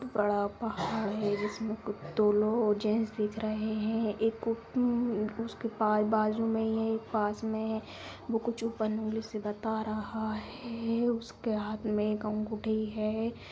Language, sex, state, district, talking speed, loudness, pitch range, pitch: Hindi, female, Bihar, East Champaran, 155 wpm, -32 LUFS, 215-225 Hz, 220 Hz